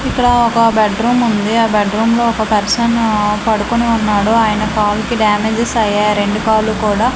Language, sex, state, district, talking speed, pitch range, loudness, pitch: Telugu, female, Andhra Pradesh, Manyam, 170 wpm, 210-230 Hz, -13 LUFS, 220 Hz